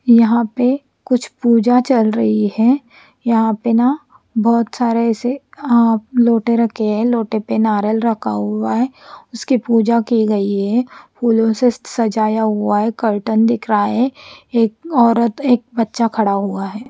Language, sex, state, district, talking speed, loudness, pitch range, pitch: Hindi, female, Chandigarh, Chandigarh, 155 wpm, -16 LUFS, 220-245 Hz, 230 Hz